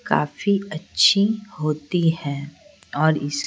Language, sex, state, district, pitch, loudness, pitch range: Hindi, female, Bihar, Patna, 160 Hz, -21 LUFS, 150-200 Hz